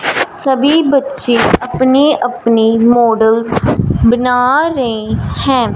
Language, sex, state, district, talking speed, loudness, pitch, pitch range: Hindi, female, Punjab, Fazilka, 75 wpm, -12 LUFS, 245 Hz, 230-270 Hz